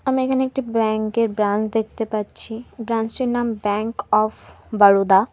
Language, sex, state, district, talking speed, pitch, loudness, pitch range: Bengali, female, West Bengal, Alipurduar, 145 wpm, 225 Hz, -20 LUFS, 210-235 Hz